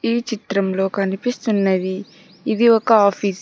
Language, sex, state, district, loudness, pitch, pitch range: Telugu, female, Telangana, Hyderabad, -18 LUFS, 200 Hz, 195-225 Hz